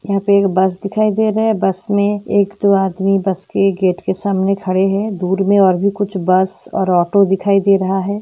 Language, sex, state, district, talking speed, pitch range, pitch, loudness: Hindi, female, Bihar, Gaya, 235 wpm, 190-200 Hz, 195 Hz, -15 LUFS